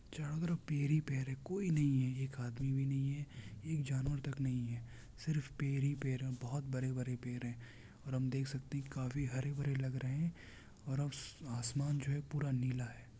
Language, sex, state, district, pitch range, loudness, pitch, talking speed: Hindi, male, Bihar, Kishanganj, 125-145 Hz, -40 LUFS, 135 Hz, 220 wpm